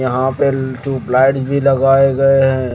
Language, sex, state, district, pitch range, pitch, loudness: Hindi, male, Himachal Pradesh, Shimla, 130-135 Hz, 135 Hz, -14 LUFS